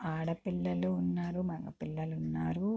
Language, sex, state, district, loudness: Telugu, female, Andhra Pradesh, Guntur, -36 LUFS